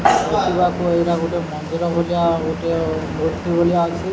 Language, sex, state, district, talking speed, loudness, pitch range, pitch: Odia, male, Odisha, Sambalpur, 145 wpm, -19 LUFS, 165-175 Hz, 170 Hz